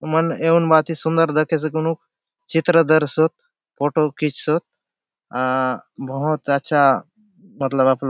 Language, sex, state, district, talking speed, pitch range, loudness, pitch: Halbi, male, Chhattisgarh, Bastar, 125 wpm, 140-165 Hz, -19 LUFS, 155 Hz